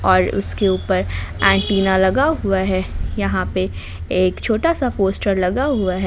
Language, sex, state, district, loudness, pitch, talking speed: Hindi, female, Jharkhand, Ranchi, -18 LUFS, 185 Hz, 160 wpm